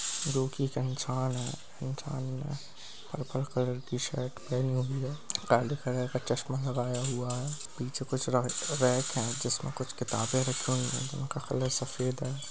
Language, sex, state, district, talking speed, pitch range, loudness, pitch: Hindi, male, Uttar Pradesh, Muzaffarnagar, 140 wpm, 125-135 Hz, -32 LUFS, 130 Hz